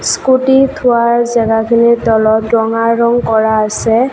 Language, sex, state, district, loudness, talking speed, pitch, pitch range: Assamese, female, Assam, Kamrup Metropolitan, -11 LUFS, 115 wpm, 235 Hz, 225-240 Hz